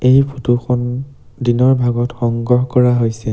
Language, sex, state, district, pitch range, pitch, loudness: Assamese, male, Assam, Sonitpur, 120-125 Hz, 125 Hz, -16 LUFS